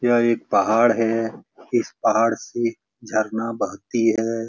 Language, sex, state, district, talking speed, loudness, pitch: Hindi, male, Bihar, Lakhisarai, 135 wpm, -21 LUFS, 115 Hz